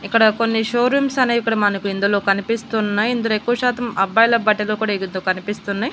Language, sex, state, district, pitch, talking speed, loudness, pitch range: Telugu, female, Andhra Pradesh, Annamaya, 220 Hz, 170 wpm, -18 LUFS, 205-235 Hz